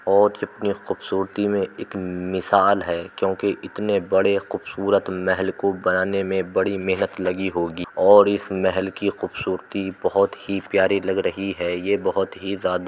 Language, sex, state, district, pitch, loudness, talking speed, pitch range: Hindi, male, Uttar Pradesh, Jyotiba Phule Nagar, 95 Hz, -22 LUFS, 160 wpm, 95-100 Hz